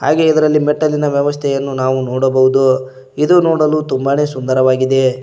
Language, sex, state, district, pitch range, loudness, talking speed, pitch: Kannada, male, Karnataka, Koppal, 130-150 Hz, -14 LUFS, 115 wpm, 135 Hz